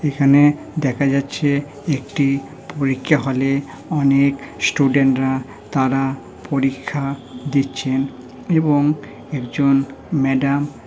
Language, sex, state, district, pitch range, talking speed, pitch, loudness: Bengali, male, West Bengal, Kolkata, 135-145 Hz, 90 wpm, 140 Hz, -19 LUFS